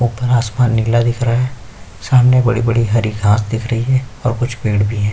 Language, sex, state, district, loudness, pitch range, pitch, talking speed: Hindi, male, Chhattisgarh, Kabirdham, -15 LUFS, 110-120 Hz, 115 Hz, 210 wpm